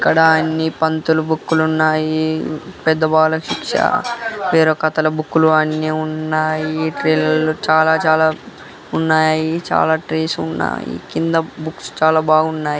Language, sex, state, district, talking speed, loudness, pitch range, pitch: Telugu, male, Andhra Pradesh, Guntur, 120 wpm, -17 LUFS, 155-160 Hz, 160 Hz